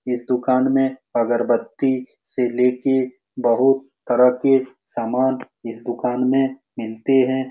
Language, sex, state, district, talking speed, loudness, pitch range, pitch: Hindi, male, Bihar, Saran, 130 wpm, -20 LUFS, 125-130 Hz, 130 Hz